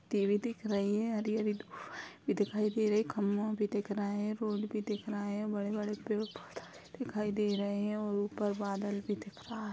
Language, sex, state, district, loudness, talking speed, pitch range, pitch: Hindi, female, Uttar Pradesh, Gorakhpur, -35 LUFS, 220 wpm, 205-215 Hz, 210 Hz